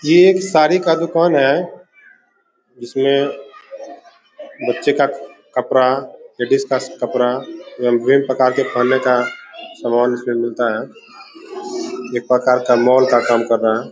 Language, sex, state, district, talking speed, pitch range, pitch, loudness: Hindi, male, Bihar, Begusarai, 140 wpm, 125-205 Hz, 135 Hz, -16 LUFS